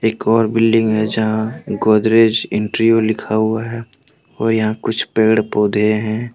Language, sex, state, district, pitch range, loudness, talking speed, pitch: Hindi, male, Jharkhand, Deoghar, 110-115 Hz, -16 LUFS, 150 wpm, 110 Hz